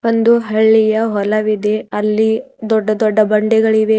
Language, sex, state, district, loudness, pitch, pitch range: Kannada, female, Karnataka, Bidar, -14 LUFS, 220 Hz, 215-220 Hz